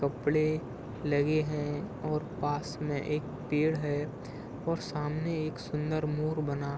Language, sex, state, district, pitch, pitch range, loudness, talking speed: Hindi, male, Uttar Pradesh, Deoria, 150 Hz, 145-155 Hz, -32 LUFS, 140 wpm